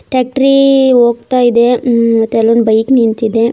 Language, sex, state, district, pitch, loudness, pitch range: Kannada, female, Karnataka, Raichur, 235 Hz, -10 LUFS, 230-255 Hz